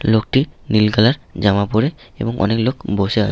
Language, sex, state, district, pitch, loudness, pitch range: Bengali, male, West Bengal, Malda, 110 Hz, -17 LUFS, 100-125 Hz